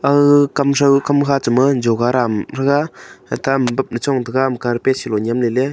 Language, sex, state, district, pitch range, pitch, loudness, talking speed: Wancho, male, Arunachal Pradesh, Longding, 120-140 Hz, 135 Hz, -16 LUFS, 210 wpm